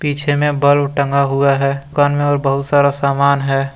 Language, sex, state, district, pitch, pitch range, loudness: Hindi, male, Jharkhand, Deoghar, 140 Hz, 140-145 Hz, -15 LUFS